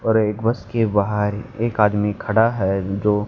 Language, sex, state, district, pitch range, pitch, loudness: Hindi, male, Haryana, Jhajjar, 105-115 Hz, 105 Hz, -20 LUFS